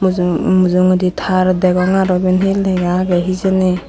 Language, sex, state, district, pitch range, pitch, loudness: Chakma, female, Tripura, Dhalai, 180-190 Hz, 185 Hz, -14 LUFS